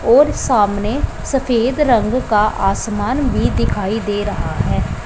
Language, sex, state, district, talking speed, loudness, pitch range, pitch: Hindi, female, Punjab, Pathankot, 130 wpm, -17 LUFS, 195-245 Hz, 210 Hz